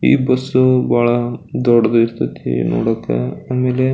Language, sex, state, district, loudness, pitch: Kannada, male, Karnataka, Belgaum, -16 LUFS, 120 Hz